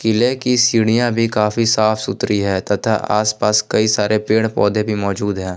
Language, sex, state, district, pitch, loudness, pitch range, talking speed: Hindi, male, Jharkhand, Ranchi, 110 Hz, -16 LUFS, 105-115 Hz, 185 wpm